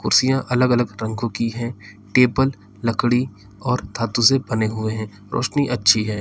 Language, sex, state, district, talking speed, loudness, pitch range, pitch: Hindi, male, Uttar Pradesh, Lalitpur, 165 wpm, -20 LUFS, 110-125 Hz, 115 Hz